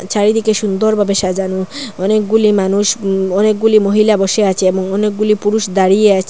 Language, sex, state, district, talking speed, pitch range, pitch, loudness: Bengali, female, Assam, Hailakandi, 145 wpm, 190-215 Hz, 205 Hz, -13 LUFS